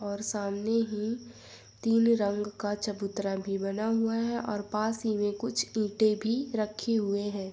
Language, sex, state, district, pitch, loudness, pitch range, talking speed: Hindi, female, Jharkhand, Jamtara, 215 Hz, -30 LUFS, 205-225 Hz, 165 wpm